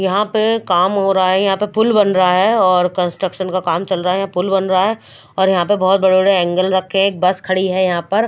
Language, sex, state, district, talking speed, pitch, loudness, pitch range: Hindi, female, Punjab, Fazilka, 290 wpm, 190 Hz, -15 LUFS, 185-195 Hz